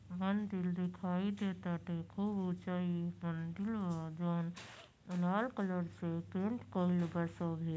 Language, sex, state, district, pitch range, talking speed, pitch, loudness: Bhojpuri, female, Uttar Pradesh, Gorakhpur, 170-195 Hz, 125 wpm, 180 Hz, -39 LUFS